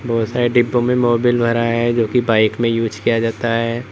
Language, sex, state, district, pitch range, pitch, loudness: Hindi, male, Uttar Pradesh, Lalitpur, 115-120 Hz, 115 Hz, -17 LUFS